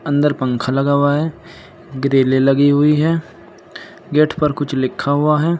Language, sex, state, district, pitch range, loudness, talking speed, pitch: Hindi, male, Uttar Pradesh, Saharanpur, 135-160 Hz, -16 LUFS, 160 wpm, 145 Hz